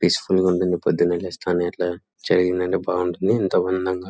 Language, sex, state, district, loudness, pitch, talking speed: Telugu, male, Andhra Pradesh, Anantapur, -21 LUFS, 90 Hz, 145 wpm